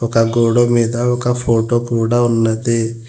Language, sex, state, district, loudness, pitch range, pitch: Telugu, male, Telangana, Hyderabad, -15 LUFS, 115-120 Hz, 115 Hz